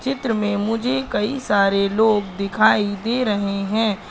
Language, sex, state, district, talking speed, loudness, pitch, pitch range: Hindi, female, Madhya Pradesh, Katni, 145 wpm, -20 LUFS, 215 Hz, 200-230 Hz